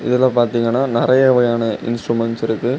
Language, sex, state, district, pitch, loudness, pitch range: Tamil, male, Tamil Nadu, Kanyakumari, 120 Hz, -16 LUFS, 115-125 Hz